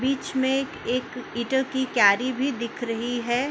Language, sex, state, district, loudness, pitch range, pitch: Hindi, female, Uttar Pradesh, Muzaffarnagar, -25 LUFS, 235-265 Hz, 255 Hz